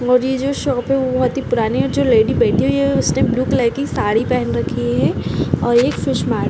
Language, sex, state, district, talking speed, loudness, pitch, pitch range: Hindi, female, Uttar Pradesh, Ghazipur, 265 wpm, -17 LUFS, 250 Hz, 220-265 Hz